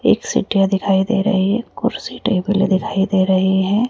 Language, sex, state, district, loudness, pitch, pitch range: Hindi, female, Rajasthan, Jaipur, -17 LUFS, 195 Hz, 190-220 Hz